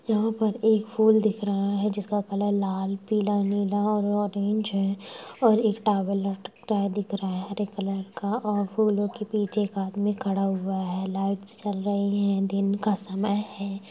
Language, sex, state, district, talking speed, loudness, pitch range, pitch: Hindi, female, Chhattisgarh, Rajnandgaon, 195 wpm, -26 LUFS, 195-210 Hz, 205 Hz